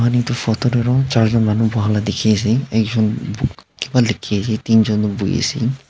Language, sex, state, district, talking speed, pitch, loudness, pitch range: Nagamese, male, Nagaland, Dimapur, 185 wpm, 110 Hz, -17 LUFS, 110-120 Hz